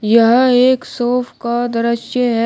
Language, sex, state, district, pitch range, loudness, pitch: Hindi, male, Uttar Pradesh, Shamli, 230-250 Hz, -15 LUFS, 240 Hz